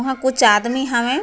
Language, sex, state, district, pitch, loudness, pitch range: Chhattisgarhi, female, Chhattisgarh, Raigarh, 255 Hz, -16 LUFS, 235-265 Hz